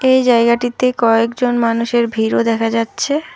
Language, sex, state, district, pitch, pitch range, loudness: Bengali, female, West Bengal, Alipurduar, 235 Hz, 230-250 Hz, -15 LUFS